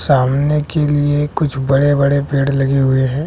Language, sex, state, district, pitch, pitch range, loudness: Hindi, male, Bihar, West Champaran, 140 Hz, 135-145 Hz, -15 LUFS